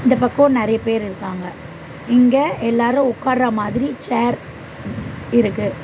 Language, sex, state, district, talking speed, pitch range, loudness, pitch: Tamil, female, Tamil Nadu, Chennai, 115 wpm, 220-255 Hz, -18 LUFS, 235 Hz